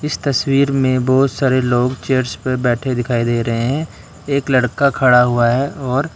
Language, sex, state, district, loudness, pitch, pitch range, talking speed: Hindi, male, Karnataka, Bangalore, -16 LUFS, 130 Hz, 120-135 Hz, 195 wpm